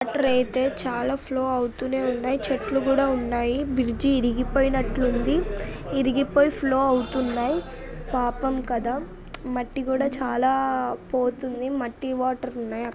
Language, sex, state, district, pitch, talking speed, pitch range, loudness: Telugu, female, Andhra Pradesh, Anantapur, 260 Hz, 120 wpm, 245-270 Hz, -25 LUFS